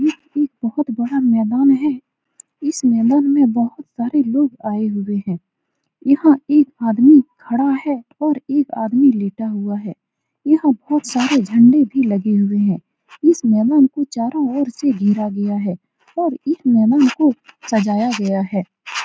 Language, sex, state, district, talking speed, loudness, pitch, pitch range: Hindi, female, Bihar, Saran, 160 wpm, -17 LUFS, 255 Hz, 215-285 Hz